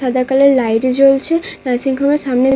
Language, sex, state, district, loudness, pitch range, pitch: Bengali, female, West Bengal, Dakshin Dinajpur, -14 LUFS, 255-275 Hz, 265 Hz